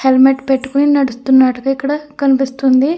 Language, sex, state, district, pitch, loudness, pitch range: Telugu, female, Andhra Pradesh, Krishna, 270 Hz, -13 LUFS, 265-280 Hz